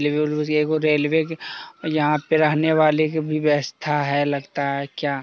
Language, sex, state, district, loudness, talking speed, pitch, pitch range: Hindi, male, Bihar, Jamui, -21 LUFS, 125 wpm, 150 Hz, 145-155 Hz